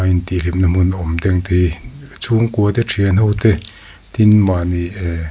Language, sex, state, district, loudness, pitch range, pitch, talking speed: Mizo, male, Mizoram, Aizawl, -16 LUFS, 90-105 Hz, 95 Hz, 145 wpm